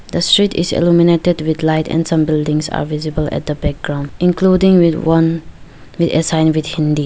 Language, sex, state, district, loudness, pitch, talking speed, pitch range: English, female, Arunachal Pradesh, Lower Dibang Valley, -14 LUFS, 160 Hz, 160 wpm, 155-170 Hz